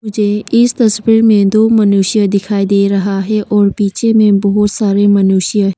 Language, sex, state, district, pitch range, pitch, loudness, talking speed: Hindi, female, Arunachal Pradesh, Papum Pare, 200-215 Hz, 205 Hz, -11 LUFS, 165 wpm